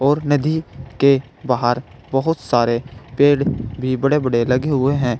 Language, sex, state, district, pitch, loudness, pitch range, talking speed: Hindi, male, Uttar Pradesh, Saharanpur, 130 Hz, -18 LUFS, 120-145 Hz, 150 wpm